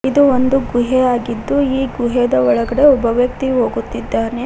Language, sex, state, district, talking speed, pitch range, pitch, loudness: Kannada, female, Karnataka, Koppal, 120 wpm, 240-265 Hz, 250 Hz, -15 LUFS